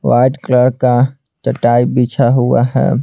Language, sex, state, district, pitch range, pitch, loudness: Hindi, male, Bihar, Patna, 125-135 Hz, 125 Hz, -13 LUFS